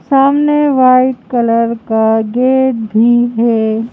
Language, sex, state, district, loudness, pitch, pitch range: Hindi, female, Madhya Pradesh, Bhopal, -11 LUFS, 240 Hz, 225-260 Hz